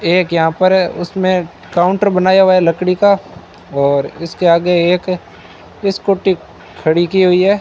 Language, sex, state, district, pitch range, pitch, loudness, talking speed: Hindi, male, Rajasthan, Bikaner, 170-190 Hz, 180 Hz, -14 LUFS, 150 wpm